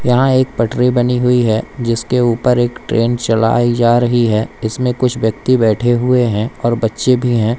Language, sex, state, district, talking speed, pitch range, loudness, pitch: Hindi, male, Madhya Pradesh, Umaria, 190 wpm, 115-125 Hz, -14 LUFS, 120 Hz